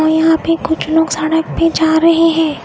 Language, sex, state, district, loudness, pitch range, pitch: Hindi, female, Odisha, Khordha, -13 LUFS, 315-330 Hz, 320 Hz